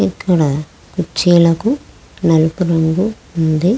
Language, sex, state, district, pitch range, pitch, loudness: Telugu, female, Andhra Pradesh, Krishna, 160-185 Hz, 170 Hz, -15 LUFS